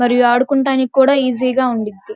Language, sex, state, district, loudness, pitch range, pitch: Telugu, female, Andhra Pradesh, Krishna, -15 LUFS, 240-265 Hz, 255 Hz